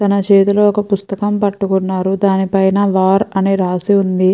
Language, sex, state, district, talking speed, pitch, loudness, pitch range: Telugu, female, Andhra Pradesh, Chittoor, 140 wpm, 195 Hz, -14 LUFS, 190-200 Hz